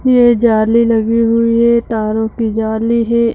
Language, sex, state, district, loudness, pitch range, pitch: Hindi, female, Bihar, Begusarai, -13 LUFS, 220-235 Hz, 230 Hz